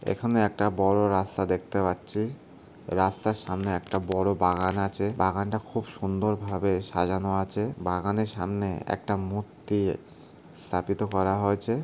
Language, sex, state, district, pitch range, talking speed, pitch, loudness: Bengali, male, West Bengal, Paschim Medinipur, 95-105 Hz, 120 wpm, 100 Hz, -27 LUFS